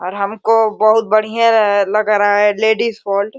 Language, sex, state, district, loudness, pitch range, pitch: Hindi, female, Uttar Pradesh, Deoria, -14 LUFS, 205-220 Hz, 215 Hz